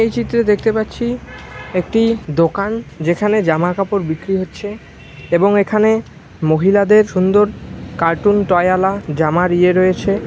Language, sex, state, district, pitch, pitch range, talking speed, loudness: Bengali, male, West Bengal, Malda, 195 Hz, 175-215 Hz, 125 wpm, -15 LUFS